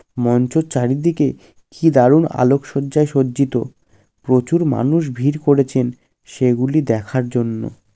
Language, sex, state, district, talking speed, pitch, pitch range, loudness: Bengali, male, West Bengal, Jalpaiguri, 105 wpm, 135 Hz, 125-150 Hz, -17 LUFS